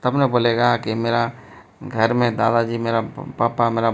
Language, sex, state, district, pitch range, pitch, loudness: Hindi, male, Bihar, Katihar, 115-120 Hz, 115 Hz, -20 LUFS